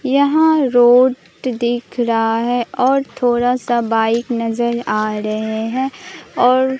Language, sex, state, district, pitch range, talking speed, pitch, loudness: Hindi, female, Bihar, Katihar, 230-260 Hz, 125 wpm, 240 Hz, -16 LUFS